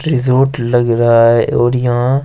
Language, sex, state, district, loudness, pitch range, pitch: Hindi, male, Rajasthan, Jaipur, -12 LUFS, 120-130 Hz, 120 Hz